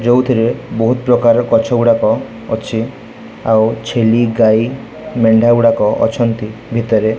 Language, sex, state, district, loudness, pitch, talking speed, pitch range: Odia, male, Odisha, Khordha, -13 LUFS, 115 Hz, 110 wpm, 115-120 Hz